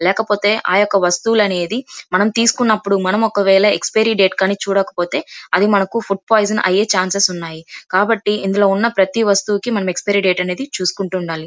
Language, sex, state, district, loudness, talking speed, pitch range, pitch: Telugu, female, Andhra Pradesh, Chittoor, -16 LUFS, 165 wpm, 185-210 Hz, 200 Hz